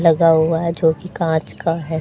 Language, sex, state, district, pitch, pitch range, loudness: Hindi, female, Haryana, Charkhi Dadri, 165 Hz, 160-165 Hz, -18 LUFS